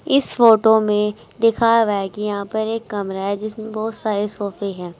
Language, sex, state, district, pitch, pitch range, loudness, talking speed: Hindi, female, Uttar Pradesh, Saharanpur, 215 Hz, 200-225 Hz, -19 LUFS, 170 wpm